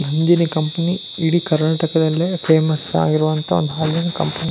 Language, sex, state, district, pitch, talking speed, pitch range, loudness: Kannada, male, Karnataka, Shimoga, 160 Hz, 135 wpm, 155-170 Hz, -18 LUFS